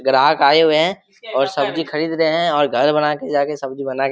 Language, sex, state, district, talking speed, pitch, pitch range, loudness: Hindi, male, Jharkhand, Jamtara, 260 wpm, 150 Hz, 135-160 Hz, -17 LUFS